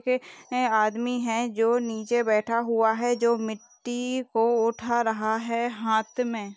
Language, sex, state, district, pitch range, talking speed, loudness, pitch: Hindi, female, Uttar Pradesh, Deoria, 220-245 Hz, 155 wpm, -26 LUFS, 230 Hz